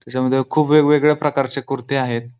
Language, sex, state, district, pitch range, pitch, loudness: Marathi, male, Maharashtra, Pune, 130-150 Hz, 135 Hz, -18 LUFS